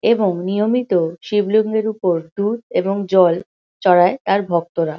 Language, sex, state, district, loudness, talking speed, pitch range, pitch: Bengali, female, West Bengal, Kolkata, -18 LUFS, 120 wpm, 175-215 Hz, 195 Hz